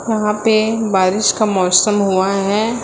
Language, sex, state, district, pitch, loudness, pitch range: Hindi, female, Uttar Pradesh, Lucknow, 210 Hz, -15 LUFS, 195-220 Hz